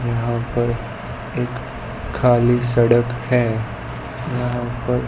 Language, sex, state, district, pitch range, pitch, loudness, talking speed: Hindi, male, Gujarat, Gandhinagar, 115-125 Hz, 120 Hz, -20 LUFS, 95 wpm